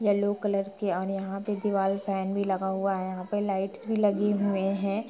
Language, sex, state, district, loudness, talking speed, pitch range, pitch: Hindi, female, Bihar, Gaya, -28 LUFS, 225 wpm, 195-205 Hz, 195 Hz